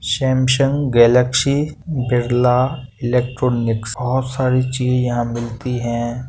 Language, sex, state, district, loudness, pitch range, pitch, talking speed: Hindi, male, Uttar Pradesh, Etah, -18 LUFS, 120-130 Hz, 125 Hz, 95 wpm